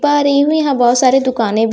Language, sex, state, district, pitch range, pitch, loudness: Hindi, female, Bihar, Katihar, 240-290 Hz, 265 Hz, -13 LUFS